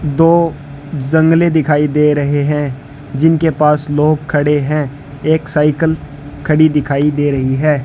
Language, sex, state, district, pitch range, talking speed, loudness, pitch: Hindi, male, Rajasthan, Bikaner, 145-155 Hz, 135 wpm, -13 LUFS, 150 Hz